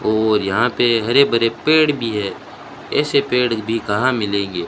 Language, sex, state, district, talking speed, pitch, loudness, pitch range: Hindi, male, Rajasthan, Bikaner, 165 wpm, 115 Hz, -17 LUFS, 105-125 Hz